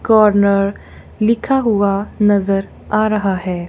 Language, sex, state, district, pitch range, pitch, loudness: Hindi, female, Punjab, Kapurthala, 195-215 Hz, 205 Hz, -15 LUFS